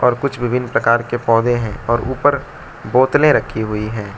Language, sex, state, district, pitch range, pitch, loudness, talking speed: Hindi, male, Arunachal Pradesh, Lower Dibang Valley, 115-130 Hz, 120 Hz, -17 LUFS, 185 wpm